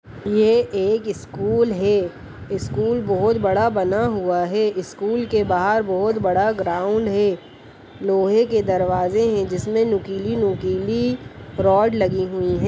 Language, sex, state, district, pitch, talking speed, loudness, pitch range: Hindi, female, Uttar Pradesh, Budaun, 200 Hz, 135 wpm, -20 LUFS, 185-220 Hz